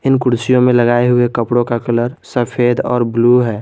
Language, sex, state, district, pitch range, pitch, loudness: Hindi, male, Jharkhand, Garhwa, 120-125 Hz, 120 Hz, -14 LUFS